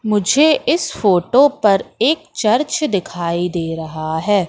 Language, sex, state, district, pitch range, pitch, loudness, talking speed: Hindi, female, Madhya Pradesh, Katni, 170-265 Hz, 195 Hz, -16 LUFS, 135 wpm